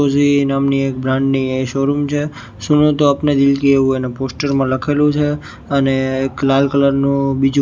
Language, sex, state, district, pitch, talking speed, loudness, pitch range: Gujarati, male, Gujarat, Gandhinagar, 140 Hz, 190 wpm, -16 LUFS, 135-145 Hz